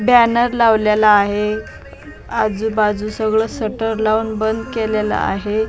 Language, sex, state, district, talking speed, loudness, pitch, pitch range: Marathi, female, Maharashtra, Mumbai Suburban, 105 wpm, -17 LUFS, 220 Hz, 215-225 Hz